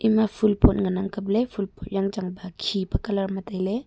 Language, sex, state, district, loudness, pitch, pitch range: Wancho, female, Arunachal Pradesh, Longding, -25 LUFS, 200 Hz, 190-215 Hz